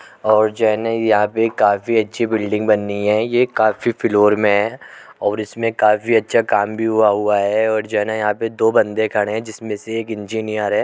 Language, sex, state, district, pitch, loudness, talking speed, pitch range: Hindi, male, Uttar Pradesh, Jyotiba Phule Nagar, 110 Hz, -17 LUFS, 180 wpm, 105-110 Hz